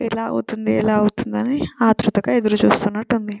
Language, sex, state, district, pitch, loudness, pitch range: Telugu, female, Telangana, Nalgonda, 215 Hz, -19 LUFS, 205-230 Hz